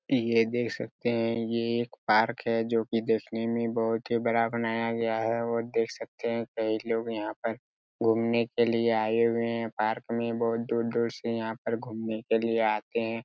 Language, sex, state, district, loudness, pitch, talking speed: Hindi, male, Chhattisgarh, Raigarh, -29 LUFS, 115 Hz, 200 wpm